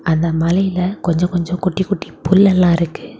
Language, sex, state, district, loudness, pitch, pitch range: Tamil, female, Tamil Nadu, Kanyakumari, -16 LUFS, 180 Hz, 170-190 Hz